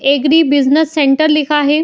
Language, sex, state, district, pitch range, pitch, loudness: Hindi, female, Uttar Pradesh, Jyotiba Phule Nagar, 285-310 Hz, 295 Hz, -12 LUFS